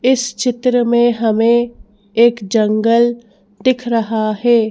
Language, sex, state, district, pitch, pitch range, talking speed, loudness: Hindi, female, Madhya Pradesh, Bhopal, 235 Hz, 220-240 Hz, 115 wpm, -15 LUFS